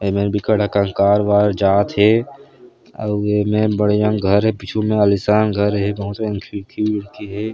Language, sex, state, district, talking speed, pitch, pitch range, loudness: Chhattisgarhi, male, Chhattisgarh, Sarguja, 185 wpm, 105 Hz, 100-105 Hz, -17 LUFS